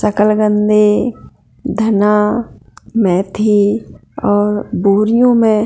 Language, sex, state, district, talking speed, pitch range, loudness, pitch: Hindi, female, Chhattisgarh, Kabirdham, 65 wpm, 210-220 Hz, -13 LUFS, 210 Hz